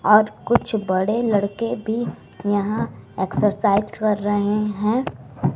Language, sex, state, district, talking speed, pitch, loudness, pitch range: Hindi, female, Bihar, West Champaran, 110 wpm, 210 Hz, -21 LUFS, 200-220 Hz